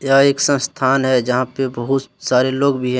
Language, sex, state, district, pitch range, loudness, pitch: Hindi, male, Jharkhand, Deoghar, 125-135 Hz, -17 LUFS, 135 Hz